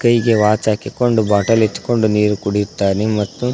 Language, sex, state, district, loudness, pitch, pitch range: Kannada, male, Karnataka, Koppal, -16 LUFS, 110 Hz, 105-115 Hz